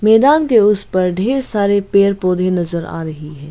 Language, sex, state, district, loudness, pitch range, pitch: Hindi, female, Arunachal Pradesh, Lower Dibang Valley, -15 LUFS, 175-215 Hz, 200 Hz